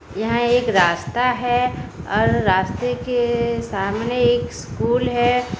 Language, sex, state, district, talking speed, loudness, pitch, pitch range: Hindi, female, Odisha, Sambalpur, 120 wpm, -19 LUFS, 240 Hz, 225-245 Hz